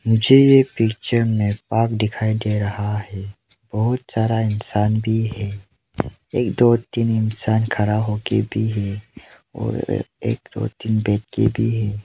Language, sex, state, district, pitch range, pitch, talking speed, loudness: Hindi, male, Arunachal Pradesh, Lower Dibang Valley, 105-115 Hz, 110 Hz, 155 wpm, -20 LUFS